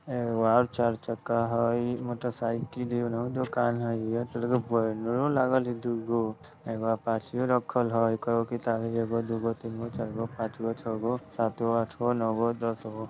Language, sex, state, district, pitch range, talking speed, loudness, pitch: Bajjika, male, Bihar, Vaishali, 115-120 Hz, 145 wpm, -29 LUFS, 115 Hz